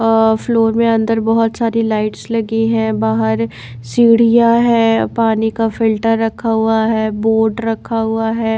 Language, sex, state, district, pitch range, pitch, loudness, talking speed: Hindi, female, Bihar, Katihar, 220-230 Hz, 225 Hz, -14 LUFS, 145 wpm